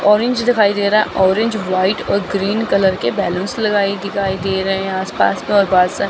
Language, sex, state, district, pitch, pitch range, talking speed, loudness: Hindi, female, Chandigarh, Chandigarh, 195 Hz, 190-210 Hz, 215 wpm, -16 LUFS